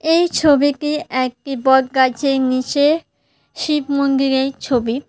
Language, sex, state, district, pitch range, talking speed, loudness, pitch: Bengali, female, Tripura, West Tripura, 260-295 Hz, 95 wpm, -17 LUFS, 275 Hz